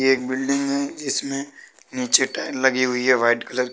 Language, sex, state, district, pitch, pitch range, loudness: Hindi, male, Uttar Pradesh, Budaun, 130 Hz, 130-140 Hz, -21 LUFS